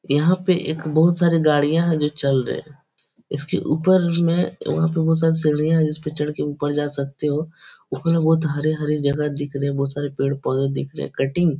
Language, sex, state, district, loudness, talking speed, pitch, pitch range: Hindi, male, Bihar, Supaul, -21 LUFS, 200 wpm, 150 Hz, 145-165 Hz